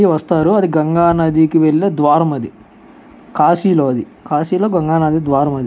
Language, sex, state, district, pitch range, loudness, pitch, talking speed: Telugu, male, Andhra Pradesh, Guntur, 145-170 Hz, -14 LUFS, 160 Hz, 150 wpm